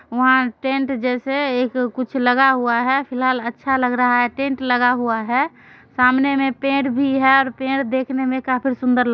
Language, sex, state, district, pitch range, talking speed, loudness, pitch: Maithili, female, Bihar, Supaul, 250-270 Hz, 195 wpm, -18 LUFS, 260 Hz